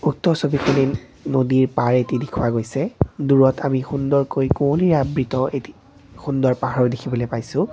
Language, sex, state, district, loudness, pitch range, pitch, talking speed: Assamese, male, Assam, Kamrup Metropolitan, -20 LUFS, 125-140 Hz, 135 Hz, 130 wpm